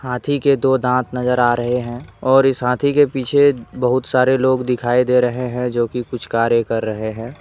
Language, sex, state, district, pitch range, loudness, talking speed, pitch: Hindi, male, Jharkhand, Deoghar, 120-130 Hz, -17 LUFS, 220 wpm, 125 Hz